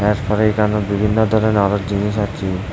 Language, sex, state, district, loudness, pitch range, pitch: Bengali, male, Tripura, West Tripura, -17 LUFS, 100-105 Hz, 105 Hz